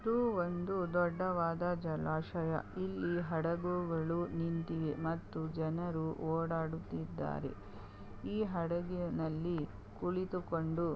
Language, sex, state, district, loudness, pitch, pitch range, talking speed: Kannada, female, Karnataka, Belgaum, -37 LUFS, 165 Hz, 160-175 Hz, 75 wpm